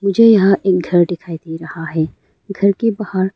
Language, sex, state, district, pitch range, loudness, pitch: Hindi, female, Arunachal Pradesh, Lower Dibang Valley, 165-200 Hz, -16 LUFS, 190 Hz